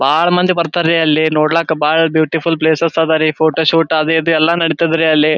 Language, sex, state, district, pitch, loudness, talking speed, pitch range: Kannada, male, Karnataka, Gulbarga, 160 Hz, -13 LUFS, 190 wpm, 155-165 Hz